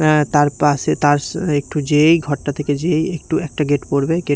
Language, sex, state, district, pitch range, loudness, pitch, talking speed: Bengali, male, Odisha, Nuapada, 145-160 Hz, -17 LUFS, 150 Hz, 205 wpm